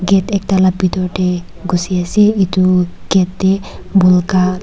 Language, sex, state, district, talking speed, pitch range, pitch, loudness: Nagamese, female, Nagaland, Kohima, 140 wpm, 180-190 Hz, 185 Hz, -14 LUFS